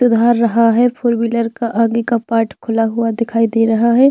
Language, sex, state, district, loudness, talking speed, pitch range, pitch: Hindi, female, Chhattisgarh, Bilaspur, -15 LUFS, 220 wpm, 225-235 Hz, 230 Hz